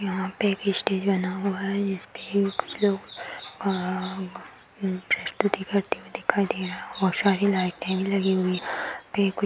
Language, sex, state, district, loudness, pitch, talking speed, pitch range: Hindi, female, Uttar Pradesh, Hamirpur, -26 LUFS, 195 Hz, 145 wpm, 190-200 Hz